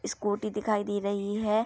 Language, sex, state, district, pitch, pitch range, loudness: Hindi, female, Bihar, Araria, 210 Hz, 205-215 Hz, -30 LUFS